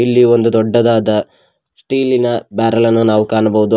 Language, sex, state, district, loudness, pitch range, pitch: Kannada, male, Karnataka, Koppal, -13 LUFS, 110-120 Hz, 115 Hz